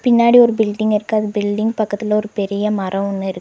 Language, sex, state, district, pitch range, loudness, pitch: Tamil, female, Tamil Nadu, Nilgiris, 205-220 Hz, -17 LUFS, 210 Hz